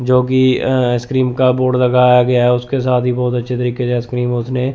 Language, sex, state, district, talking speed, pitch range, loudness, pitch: Hindi, male, Chandigarh, Chandigarh, 215 wpm, 125-130 Hz, -14 LUFS, 125 Hz